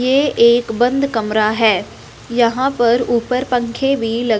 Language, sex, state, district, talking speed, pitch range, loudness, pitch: Hindi, female, Punjab, Fazilka, 150 wpm, 230-255 Hz, -16 LUFS, 235 Hz